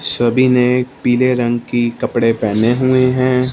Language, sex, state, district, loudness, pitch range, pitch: Hindi, male, Punjab, Fazilka, -15 LUFS, 120-130 Hz, 125 Hz